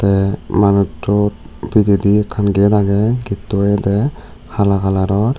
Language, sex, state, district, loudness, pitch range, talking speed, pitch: Chakma, male, Tripura, West Tripura, -15 LUFS, 100-105 Hz, 110 wpm, 100 Hz